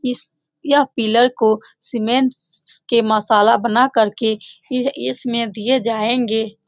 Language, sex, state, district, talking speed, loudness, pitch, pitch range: Hindi, female, Bihar, Saran, 110 wpm, -17 LUFS, 235 Hz, 220-250 Hz